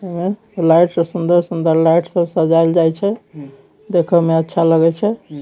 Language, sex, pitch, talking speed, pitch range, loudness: Maithili, male, 170 Hz, 135 wpm, 165-180 Hz, -15 LUFS